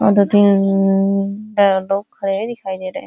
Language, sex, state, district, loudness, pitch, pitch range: Hindi, female, Uttar Pradesh, Ghazipur, -16 LUFS, 195 Hz, 195-205 Hz